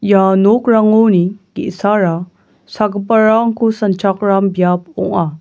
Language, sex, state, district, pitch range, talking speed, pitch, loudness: Garo, male, Meghalaya, South Garo Hills, 185-220 Hz, 80 wpm, 200 Hz, -13 LUFS